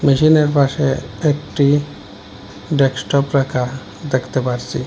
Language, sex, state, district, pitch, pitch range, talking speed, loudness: Bengali, male, Assam, Hailakandi, 135 Hz, 125-145 Hz, 85 wpm, -17 LUFS